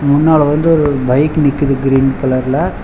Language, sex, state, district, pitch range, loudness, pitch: Tamil, male, Tamil Nadu, Chennai, 135-150 Hz, -12 LUFS, 140 Hz